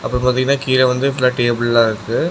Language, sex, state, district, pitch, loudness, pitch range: Tamil, male, Tamil Nadu, Namakkal, 125 Hz, -16 LUFS, 120-130 Hz